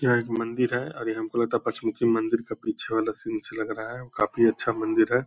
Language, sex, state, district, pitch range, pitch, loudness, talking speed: Hindi, male, Bihar, Purnia, 115-130 Hz, 120 Hz, -27 LUFS, 275 wpm